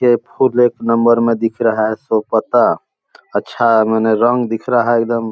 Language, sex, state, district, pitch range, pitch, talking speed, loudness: Hindi, male, Chhattisgarh, Balrampur, 110-120 Hz, 115 Hz, 215 wpm, -15 LUFS